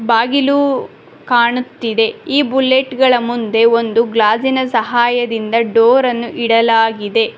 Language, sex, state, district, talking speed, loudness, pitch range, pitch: Kannada, female, Karnataka, Bangalore, 90 wpm, -14 LUFS, 230-260 Hz, 235 Hz